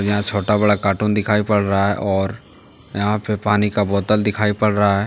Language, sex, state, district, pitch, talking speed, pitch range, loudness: Hindi, male, Jharkhand, Deoghar, 105 Hz, 215 wpm, 100-105 Hz, -18 LUFS